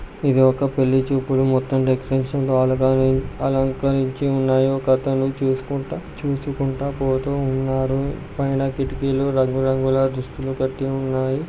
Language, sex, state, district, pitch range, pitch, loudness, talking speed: Telugu, male, Andhra Pradesh, Guntur, 130-135 Hz, 135 Hz, -21 LUFS, 95 wpm